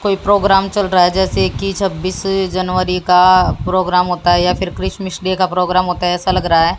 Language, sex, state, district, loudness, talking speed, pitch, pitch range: Hindi, female, Haryana, Jhajjar, -15 LUFS, 220 wpm, 185 Hz, 180-190 Hz